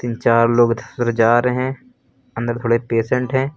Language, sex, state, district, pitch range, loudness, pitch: Hindi, male, Uttar Pradesh, Lucknow, 115-125 Hz, -18 LUFS, 120 Hz